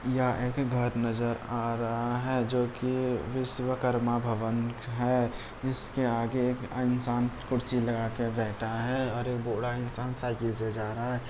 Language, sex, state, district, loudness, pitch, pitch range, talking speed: Hindi, male, Bihar, Jamui, -31 LUFS, 120 Hz, 115-125 Hz, 160 wpm